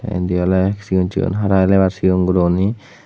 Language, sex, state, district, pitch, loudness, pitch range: Chakma, male, Tripura, West Tripura, 95 Hz, -17 LUFS, 90-95 Hz